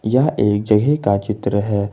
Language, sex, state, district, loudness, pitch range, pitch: Hindi, male, Jharkhand, Ranchi, -17 LUFS, 100-115 Hz, 105 Hz